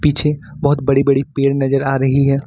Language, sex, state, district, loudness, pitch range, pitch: Hindi, male, Jharkhand, Ranchi, -16 LUFS, 135-145 Hz, 140 Hz